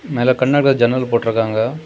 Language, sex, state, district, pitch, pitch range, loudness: Tamil, male, Tamil Nadu, Kanyakumari, 125 Hz, 115-130 Hz, -16 LUFS